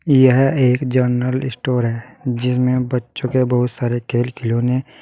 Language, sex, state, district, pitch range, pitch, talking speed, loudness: Hindi, male, Uttar Pradesh, Saharanpur, 125-130 Hz, 125 Hz, 145 wpm, -18 LUFS